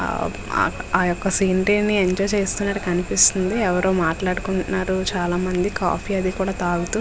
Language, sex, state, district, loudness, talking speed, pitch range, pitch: Telugu, female, Andhra Pradesh, Visakhapatnam, -21 LUFS, 135 wpm, 180-195 Hz, 185 Hz